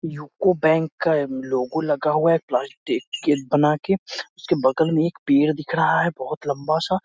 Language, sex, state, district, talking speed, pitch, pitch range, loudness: Hindi, male, Bihar, Muzaffarpur, 160 wpm, 155 Hz, 145-165 Hz, -21 LUFS